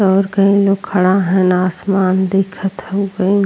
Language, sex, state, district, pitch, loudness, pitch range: Bhojpuri, female, Uttar Pradesh, Ghazipur, 195 Hz, -15 LUFS, 185-195 Hz